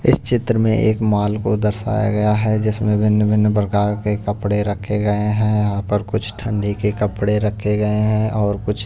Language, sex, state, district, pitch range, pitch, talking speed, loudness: Hindi, male, Punjab, Pathankot, 105-110 Hz, 105 Hz, 190 wpm, -18 LUFS